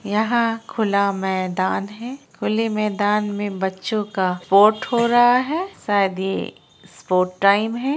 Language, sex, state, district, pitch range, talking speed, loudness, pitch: Hindi, female, Bihar, Araria, 195-230 Hz, 145 wpm, -20 LUFS, 210 Hz